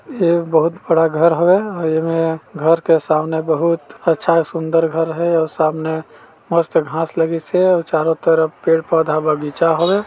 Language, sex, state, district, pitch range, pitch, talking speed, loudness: Chhattisgarhi, male, Chhattisgarh, Balrampur, 160-170 Hz, 165 Hz, 165 wpm, -16 LUFS